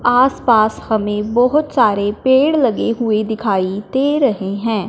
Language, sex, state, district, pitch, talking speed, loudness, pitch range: Hindi, male, Punjab, Fazilka, 225 Hz, 135 wpm, -16 LUFS, 210-260 Hz